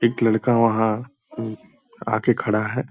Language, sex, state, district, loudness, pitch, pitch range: Hindi, male, Bihar, Purnia, -22 LUFS, 115 Hz, 110-120 Hz